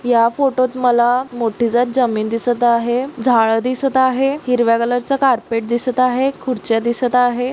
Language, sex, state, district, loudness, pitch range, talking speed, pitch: Marathi, female, Maharashtra, Solapur, -16 LUFS, 235-255 Hz, 160 wpm, 245 Hz